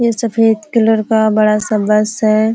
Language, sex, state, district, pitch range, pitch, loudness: Hindi, female, Uttar Pradesh, Ghazipur, 215-225 Hz, 220 Hz, -13 LUFS